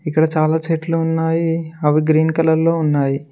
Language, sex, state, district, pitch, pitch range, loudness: Telugu, male, Telangana, Mahabubabad, 160 Hz, 155-165 Hz, -17 LUFS